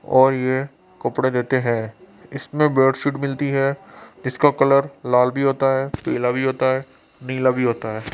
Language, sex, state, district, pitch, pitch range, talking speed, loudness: Hindi, male, Rajasthan, Jaipur, 130 Hz, 130-140 Hz, 170 wpm, -20 LUFS